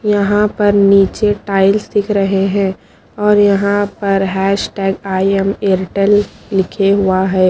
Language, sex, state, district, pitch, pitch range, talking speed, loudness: Hindi, female, Haryana, Charkhi Dadri, 200 Hz, 195-205 Hz, 135 wpm, -14 LUFS